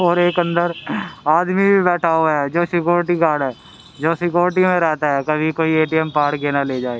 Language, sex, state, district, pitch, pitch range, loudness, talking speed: Hindi, male, Haryana, Rohtak, 165 Hz, 150-175 Hz, -18 LUFS, 215 wpm